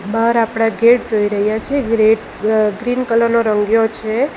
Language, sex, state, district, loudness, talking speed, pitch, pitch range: Gujarati, female, Gujarat, Valsad, -15 LUFS, 180 wpm, 225 Hz, 215-235 Hz